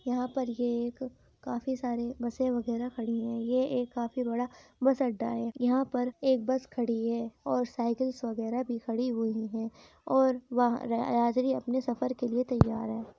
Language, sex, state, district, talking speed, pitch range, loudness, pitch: Hindi, female, Uttar Pradesh, Muzaffarnagar, 175 wpm, 235-255 Hz, -31 LUFS, 245 Hz